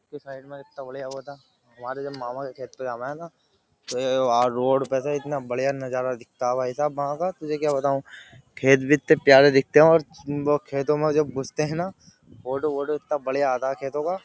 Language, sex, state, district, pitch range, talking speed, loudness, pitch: Hindi, male, Uttar Pradesh, Jyotiba Phule Nagar, 130-150 Hz, 245 wpm, -23 LUFS, 140 Hz